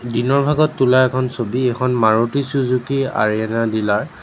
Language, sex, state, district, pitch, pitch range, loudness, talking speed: Assamese, male, Assam, Sonitpur, 125 Hz, 115-135 Hz, -17 LUFS, 170 wpm